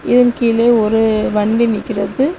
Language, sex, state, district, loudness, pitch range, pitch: Tamil, female, Tamil Nadu, Kanyakumari, -14 LUFS, 215-240 Hz, 230 Hz